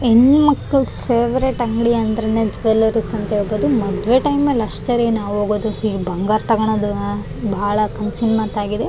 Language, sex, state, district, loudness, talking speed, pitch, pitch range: Kannada, female, Karnataka, Raichur, -18 LUFS, 135 wpm, 220 Hz, 210-235 Hz